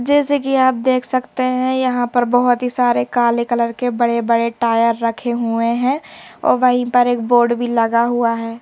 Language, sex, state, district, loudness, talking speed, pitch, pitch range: Hindi, female, Madhya Pradesh, Bhopal, -16 LUFS, 195 wpm, 240 Hz, 235-255 Hz